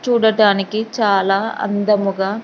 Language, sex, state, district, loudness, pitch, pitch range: Telugu, female, Andhra Pradesh, Sri Satya Sai, -17 LUFS, 210 Hz, 195-220 Hz